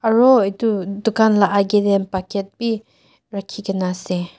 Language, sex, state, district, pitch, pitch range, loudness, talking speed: Nagamese, female, Nagaland, Dimapur, 200 Hz, 195-220 Hz, -18 LUFS, 150 wpm